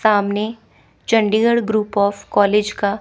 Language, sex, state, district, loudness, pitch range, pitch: Hindi, female, Chandigarh, Chandigarh, -18 LUFS, 205-220 Hz, 210 Hz